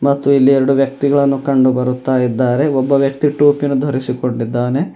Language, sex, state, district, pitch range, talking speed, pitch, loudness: Kannada, male, Karnataka, Bidar, 125-140 Hz, 135 wpm, 135 Hz, -14 LUFS